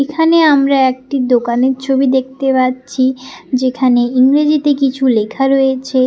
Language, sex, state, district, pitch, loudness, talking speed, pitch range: Bengali, female, West Bengal, Paschim Medinipur, 265 Hz, -13 LUFS, 120 wpm, 255-275 Hz